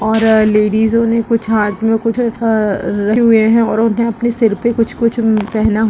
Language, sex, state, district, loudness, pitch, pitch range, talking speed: Hindi, female, Chhattisgarh, Raigarh, -13 LUFS, 225 Hz, 215-230 Hz, 215 wpm